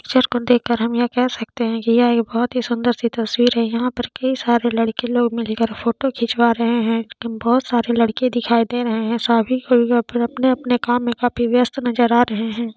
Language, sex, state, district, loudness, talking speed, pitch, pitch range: Hindi, female, Jharkhand, Sahebganj, -18 LUFS, 195 wpm, 235 Hz, 230-245 Hz